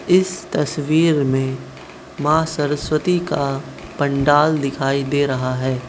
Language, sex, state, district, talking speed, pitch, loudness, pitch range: Hindi, male, Manipur, Imphal West, 110 wpm, 145 Hz, -19 LUFS, 135-155 Hz